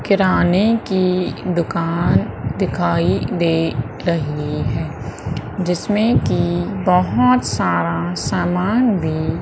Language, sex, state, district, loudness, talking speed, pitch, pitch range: Hindi, female, Madhya Pradesh, Umaria, -18 LUFS, 85 wpm, 170 Hz, 130-185 Hz